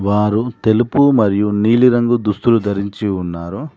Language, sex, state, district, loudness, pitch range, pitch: Telugu, male, Telangana, Mahabubabad, -15 LUFS, 100-120 Hz, 105 Hz